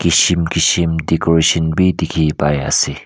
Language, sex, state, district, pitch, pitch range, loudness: Nagamese, male, Nagaland, Kohima, 85 Hz, 80-85 Hz, -15 LUFS